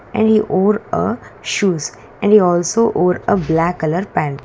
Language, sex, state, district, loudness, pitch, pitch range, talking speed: English, female, Karnataka, Bangalore, -16 LUFS, 180 Hz, 165-210 Hz, 175 wpm